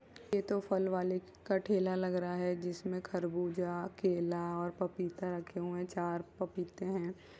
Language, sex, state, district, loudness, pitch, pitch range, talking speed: Hindi, female, Uttar Pradesh, Jyotiba Phule Nagar, -37 LUFS, 180 Hz, 175-185 Hz, 160 wpm